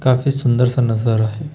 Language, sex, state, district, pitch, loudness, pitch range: Hindi, male, Chhattisgarh, Bastar, 125 Hz, -17 LUFS, 115-135 Hz